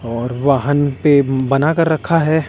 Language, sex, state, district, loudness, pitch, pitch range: Hindi, male, Delhi, New Delhi, -15 LUFS, 145 Hz, 135-155 Hz